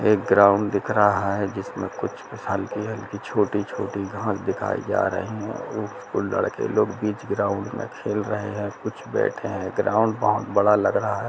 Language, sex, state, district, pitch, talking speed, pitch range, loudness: Hindi, male, Jharkhand, Jamtara, 105 Hz, 175 wpm, 100-105 Hz, -24 LUFS